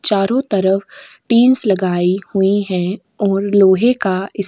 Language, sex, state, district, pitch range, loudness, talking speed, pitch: Hindi, female, Uttar Pradesh, Etah, 190-210 Hz, -15 LUFS, 145 wpm, 195 Hz